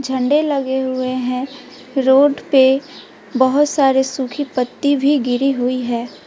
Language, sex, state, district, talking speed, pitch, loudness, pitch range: Hindi, female, West Bengal, Alipurduar, 135 wpm, 265 Hz, -17 LUFS, 255-280 Hz